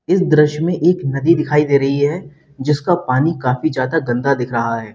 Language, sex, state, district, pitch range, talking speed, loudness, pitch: Hindi, male, Uttar Pradesh, Lalitpur, 130-165 Hz, 205 wpm, -16 LUFS, 150 Hz